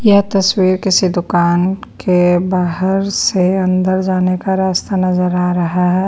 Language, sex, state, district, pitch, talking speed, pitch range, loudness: Hindi, female, Bihar, Patna, 185 Hz, 140 wpm, 180-190 Hz, -14 LUFS